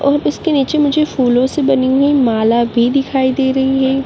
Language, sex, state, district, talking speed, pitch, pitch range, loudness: Hindi, female, Uttarakhand, Uttarkashi, 205 wpm, 270 Hz, 255-285 Hz, -14 LUFS